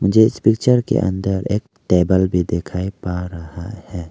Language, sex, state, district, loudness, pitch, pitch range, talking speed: Hindi, male, Arunachal Pradesh, Lower Dibang Valley, -18 LUFS, 95 Hz, 90-105 Hz, 175 wpm